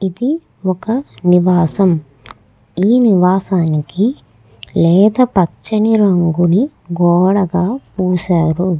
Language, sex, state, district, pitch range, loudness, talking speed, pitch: Telugu, female, Andhra Pradesh, Krishna, 170-205 Hz, -14 LUFS, 75 wpm, 180 Hz